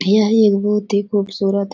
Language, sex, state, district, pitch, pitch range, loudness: Hindi, female, Bihar, Jahanabad, 205 Hz, 200-210 Hz, -16 LUFS